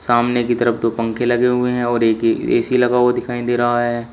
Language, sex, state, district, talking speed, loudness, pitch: Hindi, male, Uttar Pradesh, Shamli, 245 wpm, -17 LUFS, 120 Hz